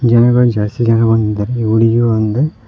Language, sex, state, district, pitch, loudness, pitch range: Kannada, male, Karnataka, Koppal, 115 Hz, -13 LUFS, 110-120 Hz